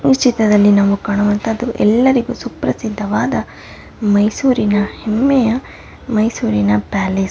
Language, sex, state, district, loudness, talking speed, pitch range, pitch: Kannada, female, Karnataka, Mysore, -15 LUFS, 90 wpm, 205-245 Hz, 215 Hz